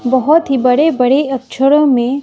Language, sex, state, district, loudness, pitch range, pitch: Hindi, female, Bihar, West Champaran, -12 LUFS, 255-290 Hz, 265 Hz